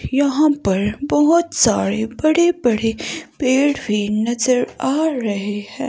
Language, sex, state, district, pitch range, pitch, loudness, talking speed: Hindi, female, Himachal Pradesh, Shimla, 210-295 Hz, 250 Hz, -18 LUFS, 110 wpm